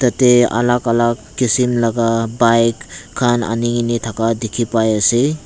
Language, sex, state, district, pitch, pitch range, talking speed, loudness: Nagamese, male, Nagaland, Dimapur, 120 Hz, 115-120 Hz, 145 wpm, -15 LUFS